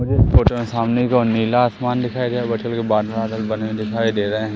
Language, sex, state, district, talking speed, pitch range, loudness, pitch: Hindi, male, Madhya Pradesh, Umaria, 290 wpm, 110-120 Hz, -19 LUFS, 115 Hz